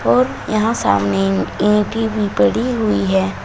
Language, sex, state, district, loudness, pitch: Hindi, female, Uttar Pradesh, Shamli, -17 LUFS, 210 Hz